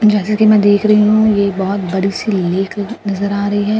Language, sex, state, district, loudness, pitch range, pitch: Hindi, female, Bihar, Katihar, -14 LUFS, 195-210 Hz, 205 Hz